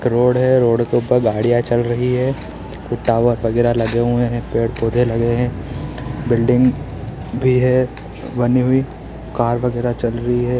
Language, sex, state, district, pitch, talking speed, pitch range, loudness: Hindi, male, Bihar, East Champaran, 120 Hz, 165 wpm, 120-125 Hz, -17 LUFS